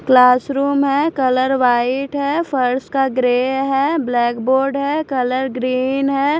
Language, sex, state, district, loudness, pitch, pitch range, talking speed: Hindi, female, Maharashtra, Washim, -17 LUFS, 265 Hz, 255-280 Hz, 150 wpm